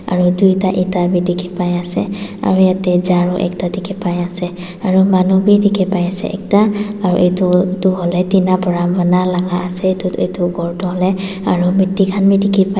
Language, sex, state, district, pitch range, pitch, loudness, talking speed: Nagamese, female, Nagaland, Dimapur, 180-190 Hz, 185 Hz, -15 LUFS, 185 wpm